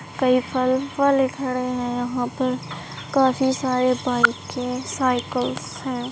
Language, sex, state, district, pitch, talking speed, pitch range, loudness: Hindi, female, Bihar, Begusarai, 255 Hz, 110 wpm, 250-260 Hz, -22 LUFS